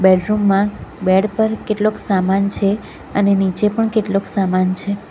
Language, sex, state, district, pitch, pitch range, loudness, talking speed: Gujarati, female, Gujarat, Valsad, 200 Hz, 190-210 Hz, -17 LUFS, 150 wpm